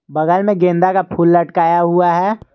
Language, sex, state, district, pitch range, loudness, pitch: Hindi, male, Jharkhand, Garhwa, 170-185 Hz, -14 LUFS, 175 Hz